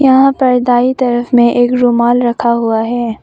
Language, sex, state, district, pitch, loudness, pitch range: Hindi, female, Arunachal Pradesh, Longding, 245 Hz, -11 LUFS, 235-250 Hz